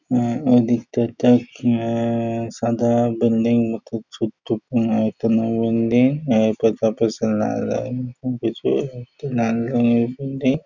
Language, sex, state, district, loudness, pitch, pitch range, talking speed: Bengali, male, West Bengal, Jhargram, -20 LUFS, 115 Hz, 115-120 Hz, 55 wpm